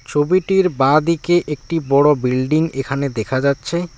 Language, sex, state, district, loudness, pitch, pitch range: Bengali, male, West Bengal, Alipurduar, -17 LUFS, 150 Hz, 135-170 Hz